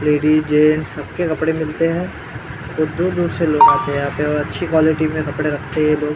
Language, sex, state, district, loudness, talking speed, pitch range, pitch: Hindi, male, Maharashtra, Gondia, -17 LUFS, 235 wpm, 150-165 Hz, 155 Hz